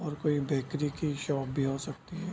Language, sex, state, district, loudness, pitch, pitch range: Hindi, male, Bihar, Bhagalpur, -32 LUFS, 145 Hz, 140-155 Hz